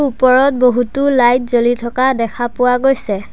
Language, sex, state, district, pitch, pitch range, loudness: Assamese, male, Assam, Sonitpur, 250 Hz, 240-260 Hz, -14 LUFS